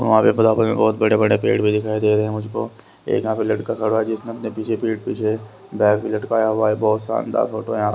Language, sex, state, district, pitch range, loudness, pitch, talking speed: Hindi, male, Haryana, Rohtak, 105-110 Hz, -19 LUFS, 110 Hz, 235 wpm